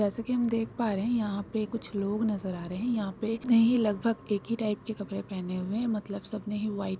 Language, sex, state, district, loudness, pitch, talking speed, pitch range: Hindi, female, West Bengal, Jhargram, -30 LUFS, 215 Hz, 265 wpm, 200-230 Hz